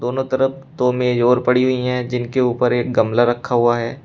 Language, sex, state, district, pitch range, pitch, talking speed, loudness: Hindi, male, Uttar Pradesh, Shamli, 120-130 Hz, 125 Hz, 220 wpm, -18 LUFS